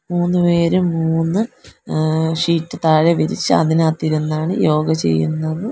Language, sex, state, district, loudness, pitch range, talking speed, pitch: Malayalam, female, Kerala, Kollam, -17 LUFS, 155-175 Hz, 95 wpm, 160 Hz